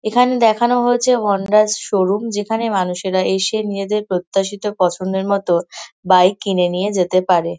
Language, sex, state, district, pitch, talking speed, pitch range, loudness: Bengali, female, West Bengal, North 24 Parganas, 195 Hz, 140 wpm, 185-215 Hz, -17 LUFS